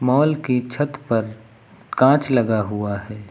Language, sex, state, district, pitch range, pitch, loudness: Hindi, male, Uttar Pradesh, Lucknow, 110-135 Hz, 120 Hz, -20 LUFS